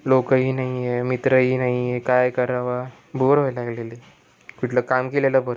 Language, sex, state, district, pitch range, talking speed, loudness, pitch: Marathi, male, Maharashtra, Pune, 125-130 Hz, 195 wpm, -21 LUFS, 125 Hz